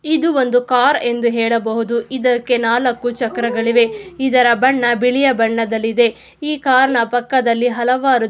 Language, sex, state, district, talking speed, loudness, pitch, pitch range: Kannada, female, Karnataka, Mysore, 130 wpm, -16 LUFS, 245 Hz, 235-260 Hz